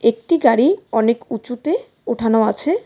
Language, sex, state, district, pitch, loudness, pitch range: Bengali, female, West Bengal, Cooch Behar, 240 Hz, -18 LUFS, 230-335 Hz